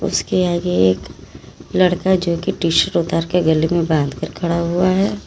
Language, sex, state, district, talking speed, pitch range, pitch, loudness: Hindi, female, Uttar Pradesh, Lalitpur, 180 wpm, 160-180 Hz, 170 Hz, -17 LUFS